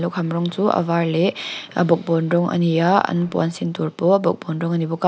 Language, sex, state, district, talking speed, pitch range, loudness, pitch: Mizo, female, Mizoram, Aizawl, 270 wpm, 165-175 Hz, -20 LUFS, 170 Hz